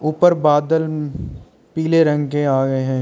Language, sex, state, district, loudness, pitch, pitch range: Hindi, male, Arunachal Pradesh, Lower Dibang Valley, -17 LUFS, 150 Hz, 145-160 Hz